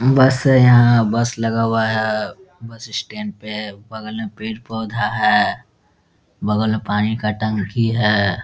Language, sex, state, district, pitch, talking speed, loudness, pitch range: Hindi, male, Bihar, Muzaffarpur, 110 Hz, 150 wpm, -18 LUFS, 105-115 Hz